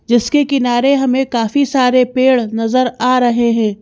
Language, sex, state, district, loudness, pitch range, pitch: Hindi, female, Madhya Pradesh, Bhopal, -13 LUFS, 235-265 Hz, 250 Hz